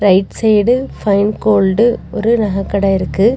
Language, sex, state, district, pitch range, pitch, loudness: Tamil, female, Tamil Nadu, Nilgiris, 195-225 Hz, 205 Hz, -14 LUFS